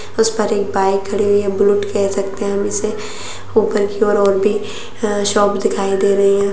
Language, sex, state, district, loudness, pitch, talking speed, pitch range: Kumaoni, female, Uttarakhand, Uttarkashi, -16 LUFS, 205 Hz, 220 wpm, 200-210 Hz